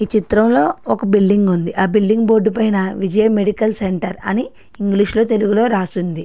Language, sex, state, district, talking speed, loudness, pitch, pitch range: Telugu, female, Andhra Pradesh, Srikakulam, 155 wpm, -16 LUFS, 210 Hz, 195-220 Hz